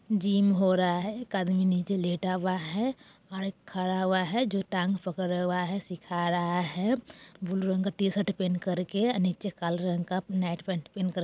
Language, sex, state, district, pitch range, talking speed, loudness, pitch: Bajjika, female, Bihar, Vaishali, 180-195 Hz, 210 wpm, -29 LUFS, 185 Hz